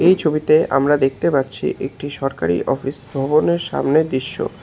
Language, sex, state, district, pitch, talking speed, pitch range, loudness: Bengali, male, West Bengal, Alipurduar, 140 Hz, 140 wpm, 135-155 Hz, -18 LUFS